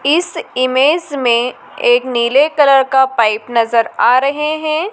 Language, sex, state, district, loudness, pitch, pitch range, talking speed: Hindi, female, Madhya Pradesh, Dhar, -13 LUFS, 270 Hz, 245-310 Hz, 145 wpm